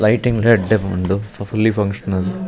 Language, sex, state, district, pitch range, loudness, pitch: Tulu, male, Karnataka, Dakshina Kannada, 95-110 Hz, -18 LUFS, 100 Hz